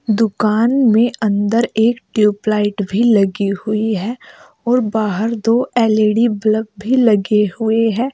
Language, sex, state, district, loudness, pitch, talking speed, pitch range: Hindi, female, Uttar Pradesh, Saharanpur, -15 LUFS, 220 Hz, 135 wpm, 210-235 Hz